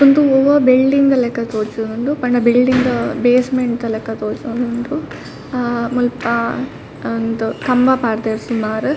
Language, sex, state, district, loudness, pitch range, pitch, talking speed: Tulu, female, Karnataka, Dakshina Kannada, -16 LUFS, 230-255 Hz, 245 Hz, 125 wpm